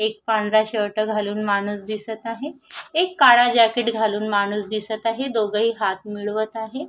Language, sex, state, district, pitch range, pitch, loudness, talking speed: Marathi, female, Maharashtra, Sindhudurg, 210-230 Hz, 215 Hz, -21 LUFS, 155 wpm